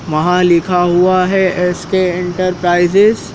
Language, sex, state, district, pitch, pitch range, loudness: Hindi, male, Madhya Pradesh, Dhar, 180 Hz, 175-185 Hz, -13 LUFS